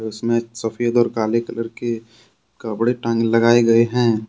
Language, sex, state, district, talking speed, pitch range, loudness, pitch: Hindi, male, Jharkhand, Deoghar, 155 wpm, 115-120 Hz, -19 LUFS, 115 Hz